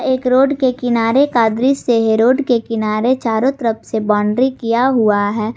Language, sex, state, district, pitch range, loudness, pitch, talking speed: Hindi, female, Jharkhand, Garhwa, 220-260 Hz, -15 LUFS, 235 Hz, 185 wpm